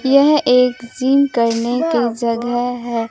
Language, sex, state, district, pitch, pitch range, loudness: Hindi, female, Bihar, Katihar, 245 Hz, 235-265 Hz, -16 LUFS